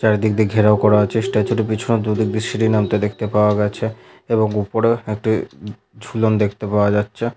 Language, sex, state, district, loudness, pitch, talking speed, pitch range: Bengali, male, West Bengal, Malda, -18 LUFS, 110 Hz, 170 wpm, 105-110 Hz